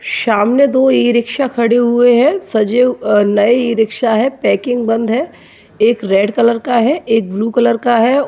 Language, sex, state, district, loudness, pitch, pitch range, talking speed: Hindi, male, Bihar, Bhagalpur, -13 LUFS, 235 Hz, 225-250 Hz, 175 wpm